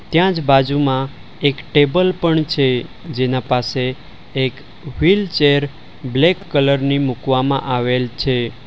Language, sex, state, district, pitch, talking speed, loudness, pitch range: Gujarati, male, Gujarat, Valsad, 140 Hz, 115 wpm, -17 LUFS, 130-150 Hz